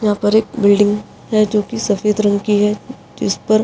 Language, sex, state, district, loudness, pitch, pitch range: Hindi, female, Uttarakhand, Uttarkashi, -16 LUFS, 210 Hz, 205-215 Hz